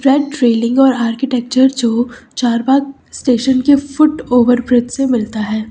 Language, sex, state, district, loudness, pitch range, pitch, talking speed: Hindi, female, Uttar Pradesh, Lucknow, -14 LUFS, 240-270 Hz, 250 Hz, 125 wpm